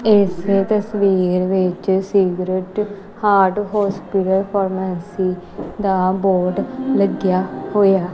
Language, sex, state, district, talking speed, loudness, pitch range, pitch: Punjabi, female, Punjab, Kapurthala, 80 wpm, -18 LUFS, 185-200 Hz, 195 Hz